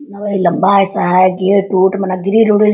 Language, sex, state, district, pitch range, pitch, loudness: Hindi, female, Bihar, Bhagalpur, 185-205 Hz, 195 Hz, -12 LUFS